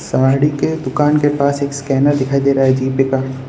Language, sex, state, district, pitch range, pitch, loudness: Hindi, male, Gujarat, Valsad, 135-145 Hz, 140 Hz, -15 LUFS